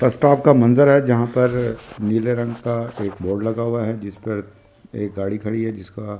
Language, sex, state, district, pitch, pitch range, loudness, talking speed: Hindi, male, Delhi, New Delhi, 115 Hz, 105-120 Hz, -19 LUFS, 215 wpm